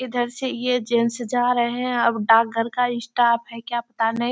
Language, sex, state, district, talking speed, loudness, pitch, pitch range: Hindi, female, Bihar, Bhagalpur, 220 wpm, -21 LUFS, 240 Hz, 235-245 Hz